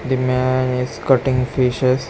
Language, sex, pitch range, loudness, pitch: English, male, 125-130 Hz, -18 LUFS, 130 Hz